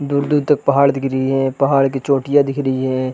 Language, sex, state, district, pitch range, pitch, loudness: Hindi, male, Chhattisgarh, Balrampur, 135-140 Hz, 140 Hz, -16 LUFS